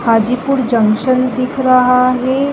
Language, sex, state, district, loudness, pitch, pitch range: Hindi, female, Chhattisgarh, Balrampur, -13 LUFS, 255 Hz, 250-260 Hz